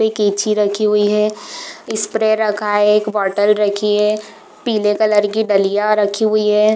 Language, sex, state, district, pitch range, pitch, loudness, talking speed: Hindi, female, Bihar, East Champaran, 210-215 Hz, 210 Hz, -16 LUFS, 170 wpm